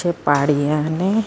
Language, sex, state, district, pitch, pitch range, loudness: Punjabi, female, Karnataka, Bangalore, 155 Hz, 145-180 Hz, -18 LUFS